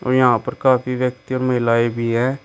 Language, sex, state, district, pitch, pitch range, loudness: Hindi, male, Uttar Pradesh, Shamli, 125 Hz, 120-130 Hz, -18 LUFS